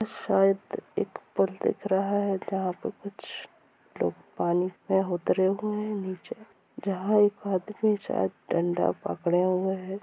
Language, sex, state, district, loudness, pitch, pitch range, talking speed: Hindi, female, Bihar, Purnia, -28 LUFS, 195 Hz, 185-205 Hz, 145 wpm